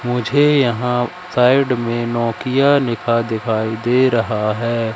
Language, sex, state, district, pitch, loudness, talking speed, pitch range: Hindi, male, Madhya Pradesh, Katni, 120 Hz, -17 LUFS, 120 wpm, 115-125 Hz